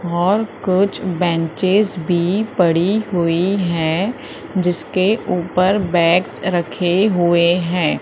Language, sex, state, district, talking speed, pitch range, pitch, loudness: Hindi, female, Madhya Pradesh, Umaria, 95 wpm, 170-195 Hz, 180 Hz, -17 LUFS